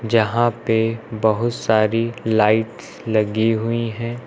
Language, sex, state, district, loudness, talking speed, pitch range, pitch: Hindi, male, Uttar Pradesh, Lucknow, -19 LUFS, 110 wpm, 110-115 Hz, 115 Hz